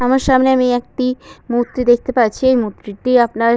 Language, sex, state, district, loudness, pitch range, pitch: Bengali, female, West Bengal, Paschim Medinipur, -15 LUFS, 235-260 Hz, 250 Hz